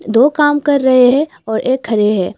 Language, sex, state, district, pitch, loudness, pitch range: Hindi, female, Assam, Hailakandi, 255 Hz, -13 LUFS, 220-285 Hz